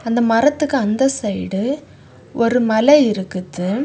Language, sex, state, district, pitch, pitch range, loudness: Tamil, female, Tamil Nadu, Kanyakumari, 230 Hz, 205-270 Hz, -17 LUFS